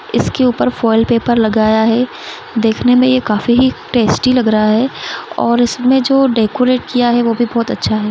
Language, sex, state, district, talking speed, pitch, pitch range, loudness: Hindi, female, Chhattisgarh, Rajnandgaon, 190 wpm, 240 Hz, 225-250 Hz, -13 LUFS